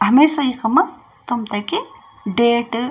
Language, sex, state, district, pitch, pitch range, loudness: Garhwali, female, Uttarakhand, Tehri Garhwal, 240 Hz, 230-275 Hz, -18 LUFS